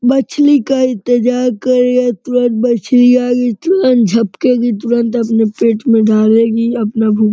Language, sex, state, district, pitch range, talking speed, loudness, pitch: Hindi, male, Uttar Pradesh, Gorakhpur, 225-250 Hz, 145 wpm, -12 LUFS, 240 Hz